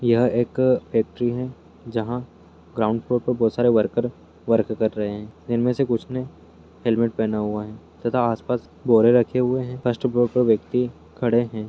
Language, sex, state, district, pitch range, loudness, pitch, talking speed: Hindi, male, Bihar, Jamui, 110-125 Hz, -22 LUFS, 115 Hz, 180 wpm